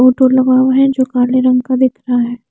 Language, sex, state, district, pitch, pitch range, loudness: Hindi, female, Chandigarh, Chandigarh, 255 Hz, 250-260 Hz, -12 LUFS